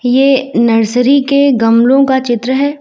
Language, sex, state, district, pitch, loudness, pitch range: Hindi, female, Uttar Pradesh, Lucknow, 260 Hz, -10 LUFS, 240-275 Hz